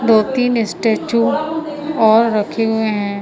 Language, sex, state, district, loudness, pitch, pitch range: Hindi, female, Madhya Pradesh, Umaria, -16 LUFS, 225 Hz, 215-255 Hz